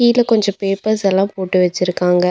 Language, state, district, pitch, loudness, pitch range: Tamil, Tamil Nadu, Nilgiris, 195 Hz, -16 LUFS, 180-215 Hz